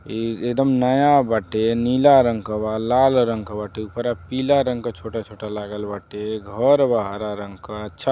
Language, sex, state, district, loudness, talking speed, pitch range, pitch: Bhojpuri, male, Uttar Pradesh, Deoria, -20 LUFS, 190 wpm, 105-125 Hz, 110 Hz